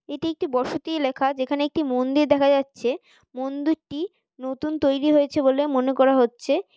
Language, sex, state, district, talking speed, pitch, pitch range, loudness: Bengali, female, West Bengal, Paschim Medinipur, 150 wpm, 280 Hz, 265-310 Hz, -22 LUFS